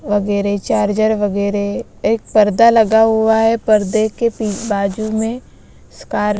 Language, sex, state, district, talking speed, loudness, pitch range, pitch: Hindi, female, Bihar, West Champaran, 130 wpm, -15 LUFS, 205-225 Hz, 215 Hz